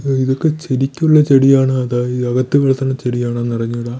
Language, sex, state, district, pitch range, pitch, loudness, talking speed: Malayalam, male, Kerala, Thiruvananthapuram, 120-135 Hz, 130 Hz, -15 LUFS, 135 wpm